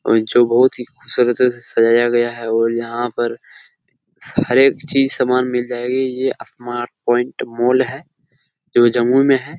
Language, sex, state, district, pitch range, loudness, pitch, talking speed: Hindi, male, Bihar, Jamui, 120-130 Hz, -17 LUFS, 120 Hz, 170 wpm